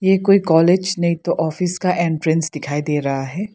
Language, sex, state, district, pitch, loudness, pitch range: Hindi, female, Arunachal Pradesh, Lower Dibang Valley, 170 Hz, -18 LUFS, 155-185 Hz